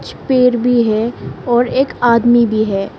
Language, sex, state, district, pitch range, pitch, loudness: Hindi, female, Arunachal Pradesh, Lower Dibang Valley, 225-245 Hz, 240 Hz, -14 LUFS